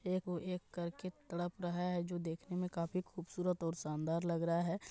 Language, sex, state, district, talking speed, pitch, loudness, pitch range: Hindi, male, Bihar, East Champaran, 210 wpm, 175 Hz, -40 LUFS, 170-180 Hz